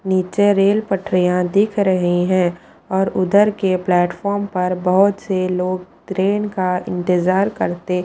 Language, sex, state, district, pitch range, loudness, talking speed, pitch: Hindi, female, Punjab, Pathankot, 180-200 Hz, -18 LUFS, 135 wpm, 185 Hz